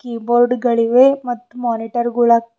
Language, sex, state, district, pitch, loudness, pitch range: Kannada, female, Karnataka, Bidar, 240 Hz, -16 LUFS, 235-245 Hz